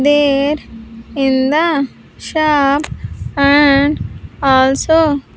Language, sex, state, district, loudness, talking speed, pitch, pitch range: English, female, Andhra Pradesh, Sri Satya Sai, -14 LUFS, 65 wpm, 280 Hz, 270-295 Hz